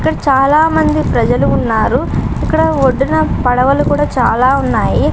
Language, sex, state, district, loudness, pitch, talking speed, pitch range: Telugu, female, Andhra Pradesh, Srikakulam, -12 LUFS, 270 Hz, 130 wpm, 245-280 Hz